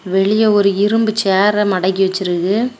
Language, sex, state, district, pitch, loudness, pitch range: Tamil, female, Tamil Nadu, Kanyakumari, 200 Hz, -15 LUFS, 190-215 Hz